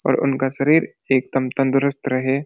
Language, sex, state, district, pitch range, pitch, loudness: Hindi, male, Uttarakhand, Uttarkashi, 130-140 Hz, 135 Hz, -19 LUFS